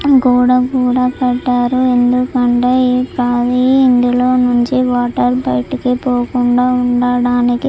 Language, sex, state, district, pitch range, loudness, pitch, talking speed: Telugu, female, Andhra Pradesh, Chittoor, 245-255 Hz, -13 LUFS, 250 Hz, 80 wpm